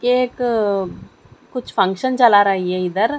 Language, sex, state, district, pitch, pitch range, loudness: Hindi, female, Chandigarh, Chandigarh, 225 Hz, 195-250 Hz, -17 LUFS